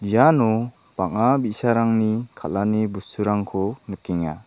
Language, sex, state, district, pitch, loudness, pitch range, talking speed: Garo, male, Meghalaya, South Garo Hills, 110 Hz, -22 LUFS, 100-115 Hz, 80 wpm